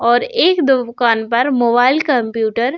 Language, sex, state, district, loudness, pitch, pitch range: Hindi, female, Uttar Pradesh, Budaun, -14 LUFS, 245 Hz, 235-265 Hz